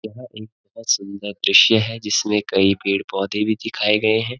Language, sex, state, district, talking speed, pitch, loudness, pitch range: Hindi, male, Uttarakhand, Uttarkashi, 190 wpm, 105 Hz, -18 LUFS, 100-110 Hz